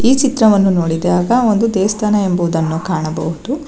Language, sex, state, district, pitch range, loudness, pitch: Kannada, female, Karnataka, Bangalore, 170-225 Hz, -14 LUFS, 195 Hz